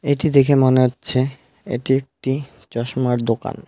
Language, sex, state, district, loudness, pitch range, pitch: Bengali, male, West Bengal, Alipurduar, -19 LUFS, 125-135 Hz, 130 Hz